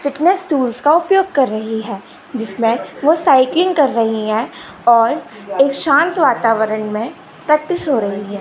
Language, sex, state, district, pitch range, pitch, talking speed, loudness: Hindi, female, Gujarat, Gandhinagar, 220-310 Hz, 255 Hz, 155 wpm, -15 LUFS